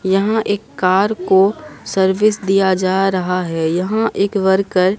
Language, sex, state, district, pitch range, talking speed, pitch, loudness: Hindi, female, Bihar, Katihar, 185-205 Hz, 155 wpm, 195 Hz, -16 LUFS